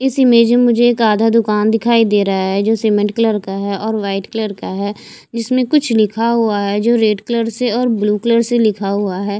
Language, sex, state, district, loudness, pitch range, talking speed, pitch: Hindi, female, Haryana, Charkhi Dadri, -15 LUFS, 205-235 Hz, 235 wpm, 220 Hz